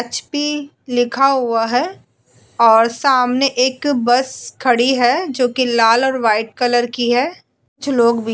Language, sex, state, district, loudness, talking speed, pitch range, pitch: Hindi, female, Uttar Pradesh, Budaun, -16 LUFS, 160 wpm, 235-270 Hz, 245 Hz